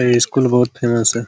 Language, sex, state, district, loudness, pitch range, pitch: Hindi, male, Jharkhand, Jamtara, -15 LUFS, 115-125 Hz, 120 Hz